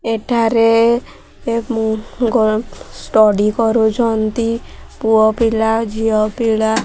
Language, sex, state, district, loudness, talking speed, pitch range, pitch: Odia, female, Odisha, Sambalpur, -15 LUFS, 60 wpm, 220-230 Hz, 225 Hz